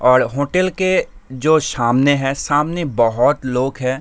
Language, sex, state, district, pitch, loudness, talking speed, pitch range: Hindi, male, Jharkhand, Sahebganj, 135 Hz, -17 LUFS, 150 wpm, 125-150 Hz